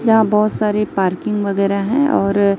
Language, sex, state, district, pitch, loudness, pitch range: Hindi, female, Chhattisgarh, Raipur, 205 Hz, -16 LUFS, 200-215 Hz